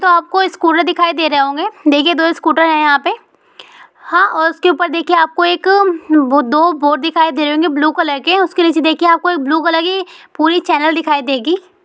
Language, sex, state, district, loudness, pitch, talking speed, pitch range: Hindi, female, West Bengal, Purulia, -13 LUFS, 330 Hz, 210 wpm, 310-350 Hz